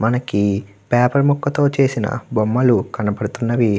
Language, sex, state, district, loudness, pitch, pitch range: Telugu, male, Andhra Pradesh, Krishna, -18 LUFS, 120 Hz, 105-130 Hz